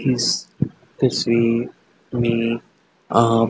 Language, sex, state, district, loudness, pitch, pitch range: Hindi, male, Haryana, Rohtak, -21 LUFS, 115 Hz, 115-120 Hz